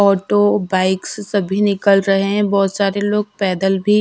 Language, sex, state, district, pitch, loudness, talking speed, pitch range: Hindi, female, Bihar, Katihar, 200 Hz, -16 LUFS, 165 wpm, 195-205 Hz